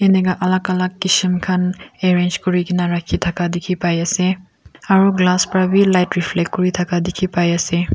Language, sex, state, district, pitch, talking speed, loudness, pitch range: Nagamese, female, Nagaland, Kohima, 180 Hz, 165 wpm, -17 LUFS, 175-185 Hz